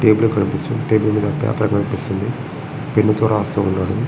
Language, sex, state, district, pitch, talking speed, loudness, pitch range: Telugu, male, Andhra Pradesh, Srikakulam, 110 Hz, 130 wpm, -19 LUFS, 105-135 Hz